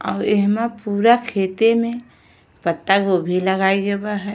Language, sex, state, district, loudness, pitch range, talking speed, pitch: Bhojpuri, female, Uttar Pradesh, Gorakhpur, -18 LUFS, 190-225 Hz, 140 wpm, 200 Hz